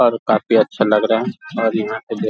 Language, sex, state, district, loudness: Hindi, male, Bihar, Darbhanga, -18 LUFS